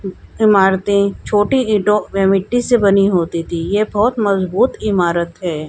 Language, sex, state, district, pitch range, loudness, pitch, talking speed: Hindi, female, Haryana, Jhajjar, 185-210 Hz, -15 LUFS, 200 Hz, 150 wpm